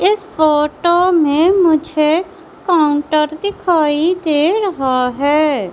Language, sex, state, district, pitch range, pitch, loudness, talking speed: Hindi, female, Madhya Pradesh, Umaria, 300-360 Hz, 315 Hz, -14 LUFS, 95 wpm